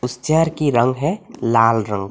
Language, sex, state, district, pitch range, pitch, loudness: Hindi, male, Assam, Hailakandi, 115-155 Hz, 125 Hz, -18 LUFS